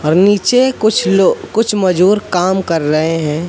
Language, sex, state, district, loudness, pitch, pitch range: Hindi, male, Madhya Pradesh, Katni, -13 LUFS, 185 Hz, 165-205 Hz